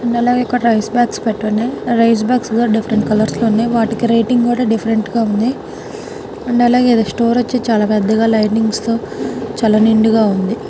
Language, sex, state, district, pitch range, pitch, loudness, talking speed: Telugu, female, Telangana, Karimnagar, 220-235 Hz, 225 Hz, -14 LUFS, 180 wpm